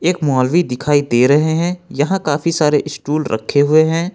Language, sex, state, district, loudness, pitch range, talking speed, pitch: Hindi, male, Jharkhand, Ranchi, -15 LUFS, 145-170 Hz, 190 wpm, 150 Hz